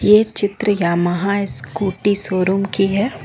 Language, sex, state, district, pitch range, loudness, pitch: Hindi, female, Jharkhand, Ranchi, 185-205 Hz, -17 LUFS, 200 Hz